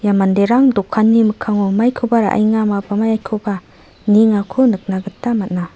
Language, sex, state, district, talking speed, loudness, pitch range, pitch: Garo, female, Meghalaya, South Garo Hills, 115 wpm, -15 LUFS, 200-225 Hz, 215 Hz